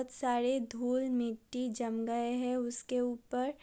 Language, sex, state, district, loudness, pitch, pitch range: Hindi, female, Uttar Pradesh, Budaun, -35 LUFS, 245 Hz, 240-255 Hz